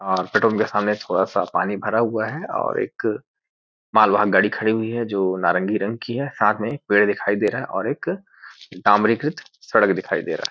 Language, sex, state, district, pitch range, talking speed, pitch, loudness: Hindi, male, Chhattisgarh, Korba, 100-115 Hz, 230 wpm, 105 Hz, -21 LUFS